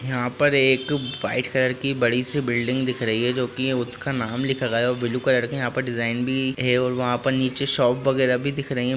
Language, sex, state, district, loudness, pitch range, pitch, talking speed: Hindi, male, Maharashtra, Pune, -23 LUFS, 125-135 Hz, 125 Hz, 250 wpm